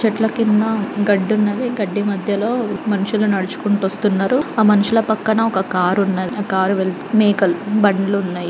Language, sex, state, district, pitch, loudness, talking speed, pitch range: Telugu, female, Andhra Pradesh, Guntur, 205 Hz, -17 LUFS, 125 wpm, 195-220 Hz